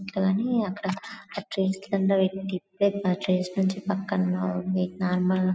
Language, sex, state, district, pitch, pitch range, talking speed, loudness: Telugu, female, Telangana, Karimnagar, 190 Hz, 185-195 Hz, 95 wpm, -27 LUFS